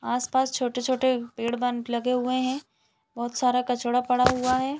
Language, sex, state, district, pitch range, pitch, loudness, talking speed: Hindi, female, Chhattisgarh, Balrampur, 245-255 Hz, 250 Hz, -25 LUFS, 175 wpm